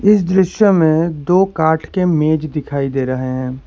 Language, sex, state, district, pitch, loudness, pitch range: Hindi, male, Karnataka, Bangalore, 160 Hz, -15 LUFS, 140-185 Hz